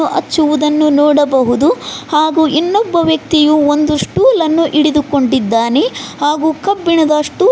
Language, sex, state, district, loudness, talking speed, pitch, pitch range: Kannada, female, Karnataka, Koppal, -12 LUFS, 105 wpm, 305 Hz, 295-320 Hz